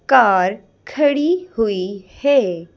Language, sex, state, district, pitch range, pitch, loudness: Hindi, female, Madhya Pradesh, Bhopal, 190-285 Hz, 225 Hz, -17 LUFS